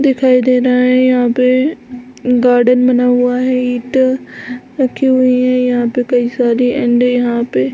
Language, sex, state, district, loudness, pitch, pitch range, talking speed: Hindi, female, Chhattisgarh, Balrampur, -12 LUFS, 250 Hz, 245-255 Hz, 170 wpm